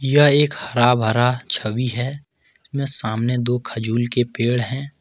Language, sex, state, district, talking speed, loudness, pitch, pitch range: Hindi, male, Jharkhand, Ranchi, 155 wpm, -19 LUFS, 125 Hz, 120-140 Hz